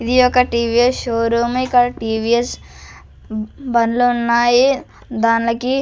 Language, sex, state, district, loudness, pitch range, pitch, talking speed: Telugu, female, Andhra Pradesh, Sri Satya Sai, -16 LUFS, 230-250 Hz, 240 Hz, 105 wpm